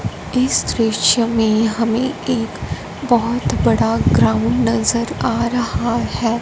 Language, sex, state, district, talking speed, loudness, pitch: Hindi, female, Punjab, Fazilka, 110 wpm, -17 LUFS, 225 Hz